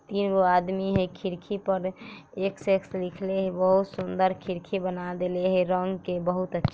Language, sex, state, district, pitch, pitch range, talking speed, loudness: Bajjika, female, Bihar, Vaishali, 185 Hz, 180-195 Hz, 185 wpm, -27 LUFS